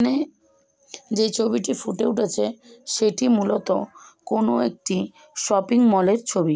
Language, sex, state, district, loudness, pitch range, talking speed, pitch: Bengali, female, West Bengal, Jalpaiguri, -22 LUFS, 190-240 Hz, 120 wpm, 220 Hz